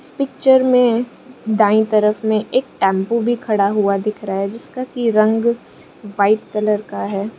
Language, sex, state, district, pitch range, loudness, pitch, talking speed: Hindi, female, Arunachal Pradesh, Lower Dibang Valley, 205-240 Hz, -17 LUFS, 220 Hz, 170 wpm